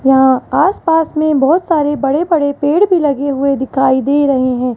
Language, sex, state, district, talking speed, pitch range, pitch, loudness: Hindi, female, Rajasthan, Jaipur, 200 wpm, 270-315 Hz, 285 Hz, -13 LUFS